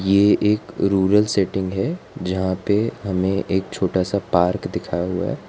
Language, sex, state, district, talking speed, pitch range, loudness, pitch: Hindi, female, Gujarat, Valsad, 165 wpm, 95-100 Hz, -21 LUFS, 95 Hz